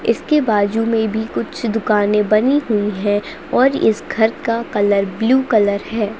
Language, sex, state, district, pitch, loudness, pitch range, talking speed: Hindi, female, Bihar, Jamui, 220 Hz, -17 LUFS, 205-230 Hz, 165 wpm